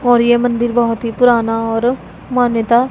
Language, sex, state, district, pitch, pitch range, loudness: Hindi, female, Punjab, Pathankot, 240 Hz, 230-245 Hz, -14 LUFS